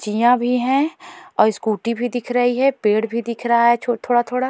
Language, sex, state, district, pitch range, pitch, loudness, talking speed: Hindi, female, Goa, North and South Goa, 235-250 Hz, 240 Hz, -19 LUFS, 200 wpm